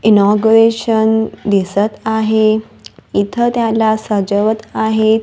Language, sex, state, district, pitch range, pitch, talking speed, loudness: Marathi, female, Maharashtra, Gondia, 210-220 Hz, 220 Hz, 80 wpm, -14 LUFS